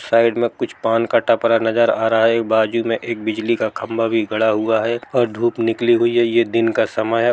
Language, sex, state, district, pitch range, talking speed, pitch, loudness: Hindi, male, Bihar, East Champaran, 110-115 Hz, 245 wpm, 115 Hz, -18 LUFS